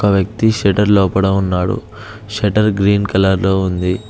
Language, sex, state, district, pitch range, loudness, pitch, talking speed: Telugu, male, Telangana, Hyderabad, 95-105 Hz, -15 LUFS, 100 Hz, 145 wpm